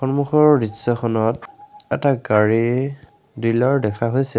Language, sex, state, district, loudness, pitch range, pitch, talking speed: Assamese, male, Assam, Sonitpur, -19 LUFS, 115-140 Hz, 130 Hz, 95 wpm